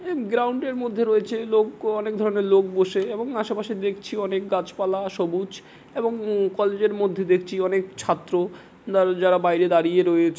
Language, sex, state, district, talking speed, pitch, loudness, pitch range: Bengali, male, West Bengal, Jalpaiguri, 165 wpm, 195 Hz, -23 LUFS, 185-215 Hz